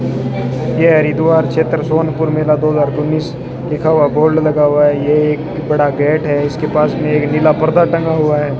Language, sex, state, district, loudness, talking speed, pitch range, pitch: Hindi, male, Rajasthan, Bikaner, -13 LUFS, 195 wpm, 150-155 Hz, 150 Hz